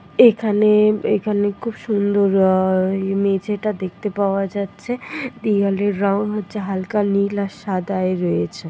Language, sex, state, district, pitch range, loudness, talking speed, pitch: Bengali, female, West Bengal, Dakshin Dinajpur, 195-210 Hz, -19 LUFS, 140 wpm, 200 Hz